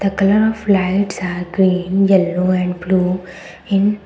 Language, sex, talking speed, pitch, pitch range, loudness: English, female, 160 wpm, 190 Hz, 180-195 Hz, -16 LUFS